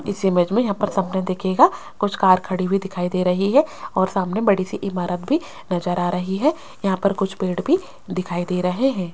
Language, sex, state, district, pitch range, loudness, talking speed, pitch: Hindi, female, Rajasthan, Jaipur, 180-205 Hz, -21 LUFS, 225 wpm, 190 Hz